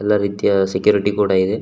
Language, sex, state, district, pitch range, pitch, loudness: Kannada, male, Karnataka, Shimoga, 95-105 Hz, 100 Hz, -17 LUFS